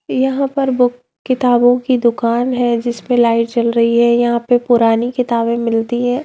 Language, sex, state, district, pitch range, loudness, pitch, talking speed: Hindi, female, Bihar, Darbhanga, 235-250 Hz, -15 LUFS, 240 Hz, 180 wpm